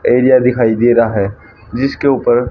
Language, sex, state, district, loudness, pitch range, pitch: Hindi, male, Haryana, Charkhi Dadri, -13 LUFS, 110-125 Hz, 120 Hz